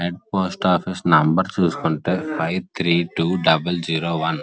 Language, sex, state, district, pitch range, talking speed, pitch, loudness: Telugu, male, Andhra Pradesh, Srikakulam, 80-90 Hz, 160 wpm, 85 Hz, -20 LUFS